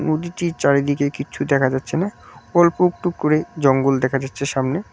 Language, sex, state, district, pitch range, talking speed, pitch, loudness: Bengali, male, West Bengal, Cooch Behar, 135-170 Hz, 160 wpm, 145 Hz, -19 LUFS